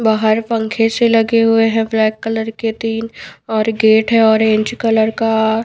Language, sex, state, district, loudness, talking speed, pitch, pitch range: Hindi, female, Bihar, Patna, -14 LUFS, 170 wpm, 225 Hz, 220-225 Hz